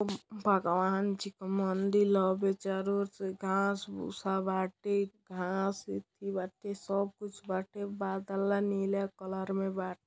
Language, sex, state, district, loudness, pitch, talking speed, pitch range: Bhojpuri, male, Uttar Pradesh, Deoria, -33 LUFS, 195 Hz, 145 wpm, 190-200 Hz